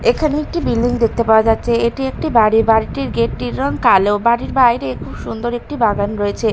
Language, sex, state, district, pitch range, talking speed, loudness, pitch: Bengali, female, Bihar, Katihar, 205-240 Hz, 195 wpm, -16 LUFS, 225 Hz